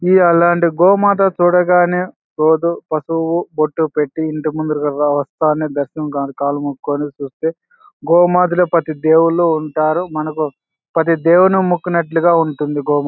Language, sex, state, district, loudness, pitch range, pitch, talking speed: Telugu, male, Andhra Pradesh, Anantapur, -15 LUFS, 150-175 Hz, 160 Hz, 95 wpm